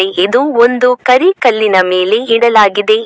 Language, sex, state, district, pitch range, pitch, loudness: Kannada, female, Karnataka, Koppal, 215-250 Hz, 235 Hz, -10 LUFS